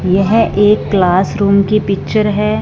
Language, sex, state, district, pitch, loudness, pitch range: Hindi, female, Punjab, Fazilka, 205 Hz, -12 LUFS, 195-210 Hz